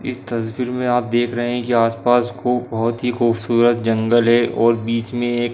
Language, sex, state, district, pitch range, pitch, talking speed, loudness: Hindi, male, Uttar Pradesh, Hamirpur, 115-120 Hz, 120 Hz, 215 wpm, -18 LUFS